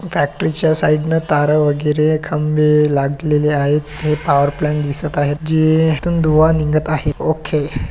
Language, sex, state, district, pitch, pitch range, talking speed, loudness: Marathi, male, Maharashtra, Chandrapur, 150 Hz, 150-155 Hz, 160 wpm, -16 LUFS